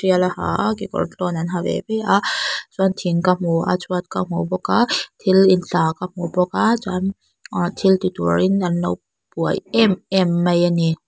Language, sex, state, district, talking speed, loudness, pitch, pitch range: Mizo, female, Mizoram, Aizawl, 215 wpm, -19 LUFS, 180 Hz, 170-190 Hz